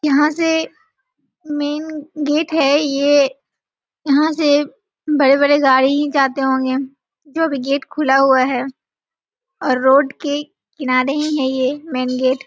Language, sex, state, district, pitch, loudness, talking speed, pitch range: Hindi, female, Bihar, Jahanabad, 285 Hz, -16 LUFS, 135 wpm, 265-300 Hz